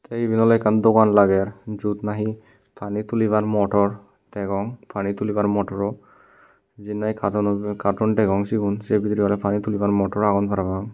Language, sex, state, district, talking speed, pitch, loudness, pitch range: Chakma, male, Tripura, Unakoti, 160 wpm, 105 Hz, -21 LUFS, 100-105 Hz